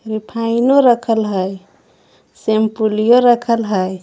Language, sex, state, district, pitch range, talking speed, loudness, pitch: Magahi, female, Jharkhand, Palamu, 215-235 Hz, 90 wpm, -15 LUFS, 220 Hz